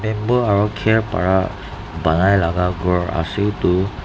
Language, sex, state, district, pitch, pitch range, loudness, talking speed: Nagamese, male, Nagaland, Dimapur, 95 Hz, 90-105 Hz, -18 LUFS, 135 wpm